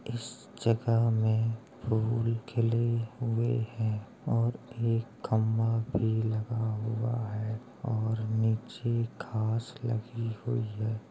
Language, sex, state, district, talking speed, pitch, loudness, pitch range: Hindi, male, Uttar Pradesh, Jalaun, 105 wpm, 115 Hz, -31 LUFS, 110-115 Hz